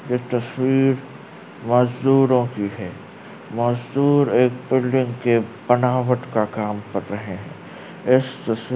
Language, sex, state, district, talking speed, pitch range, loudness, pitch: Hindi, male, Uttar Pradesh, Varanasi, 125 wpm, 115-130 Hz, -20 LUFS, 125 Hz